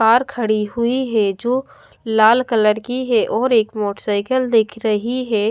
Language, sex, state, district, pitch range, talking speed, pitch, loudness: Hindi, female, Odisha, Khordha, 215-245 Hz, 165 wpm, 225 Hz, -18 LUFS